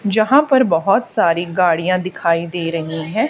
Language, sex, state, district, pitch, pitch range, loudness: Hindi, female, Haryana, Charkhi Dadri, 180 Hz, 165-220 Hz, -16 LUFS